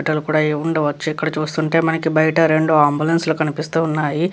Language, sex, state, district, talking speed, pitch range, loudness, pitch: Telugu, female, Andhra Pradesh, Krishna, 110 wpm, 155-160 Hz, -18 LUFS, 155 Hz